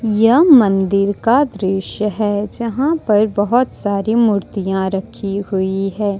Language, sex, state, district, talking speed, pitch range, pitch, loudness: Hindi, female, Jharkhand, Ranchi, 125 wpm, 195-225 Hz, 205 Hz, -16 LUFS